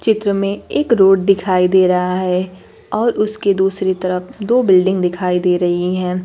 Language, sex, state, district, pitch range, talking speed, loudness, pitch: Hindi, female, Bihar, Kaimur, 180-200 Hz, 175 wpm, -15 LUFS, 185 Hz